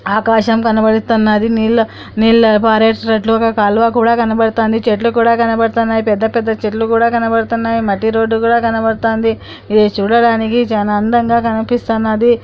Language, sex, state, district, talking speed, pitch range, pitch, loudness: Telugu, male, Andhra Pradesh, Anantapur, 120 wpm, 220-230 Hz, 225 Hz, -13 LUFS